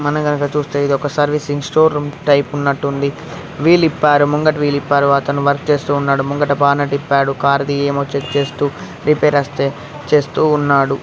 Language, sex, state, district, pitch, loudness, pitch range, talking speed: Telugu, male, Telangana, Karimnagar, 145 Hz, -15 LUFS, 140-150 Hz, 150 wpm